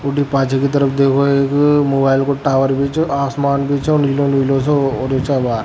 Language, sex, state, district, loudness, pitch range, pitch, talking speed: Rajasthani, male, Rajasthan, Churu, -15 LUFS, 135-140 Hz, 140 Hz, 225 wpm